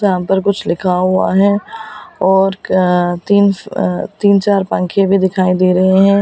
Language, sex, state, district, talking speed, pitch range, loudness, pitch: Hindi, female, Delhi, New Delhi, 165 wpm, 185-200 Hz, -13 LUFS, 190 Hz